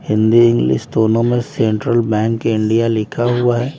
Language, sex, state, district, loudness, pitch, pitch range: Hindi, female, Bihar, West Champaran, -15 LUFS, 115 Hz, 110-120 Hz